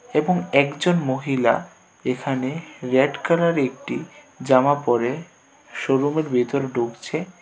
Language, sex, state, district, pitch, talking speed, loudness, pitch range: Bengali, male, Tripura, West Tripura, 140 Hz, 95 wpm, -22 LUFS, 130-155 Hz